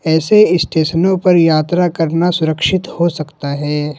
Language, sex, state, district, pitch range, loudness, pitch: Hindi, male, Jharkhand, Ranchi, 155-180 Hz, -14 LUFS, 165 Hz